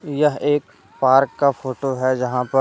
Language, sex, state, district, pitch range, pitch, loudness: Hindi, male, Jharkhand, Deoghar, 130-140 Hz, 135 Hz, -19 LUFS